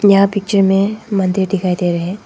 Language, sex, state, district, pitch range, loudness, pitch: Hindi, female, Arunachal Pradesh, Papum Pare, 185-200 Hz, -15 LUFS, 195 Hz